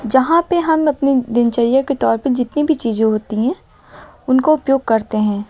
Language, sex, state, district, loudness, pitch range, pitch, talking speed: Hindi, female, Uttar Pradesh, Lucknow, -16 LUFS, 225-295 Hz, 260 Hz, 185 wpm